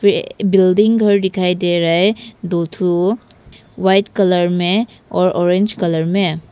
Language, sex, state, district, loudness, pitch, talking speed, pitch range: Hindi, female, Arunachal Pradesh, Papum Pare, -15 LUFS, 185 Hz, 145 wpm, 175-200 Hz